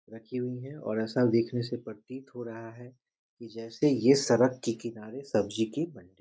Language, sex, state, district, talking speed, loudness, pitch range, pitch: Hindi, male, Bihar, Muzaffarpur, 195 wpm, -29 LUFS, 115-130 Hz, 120 Hz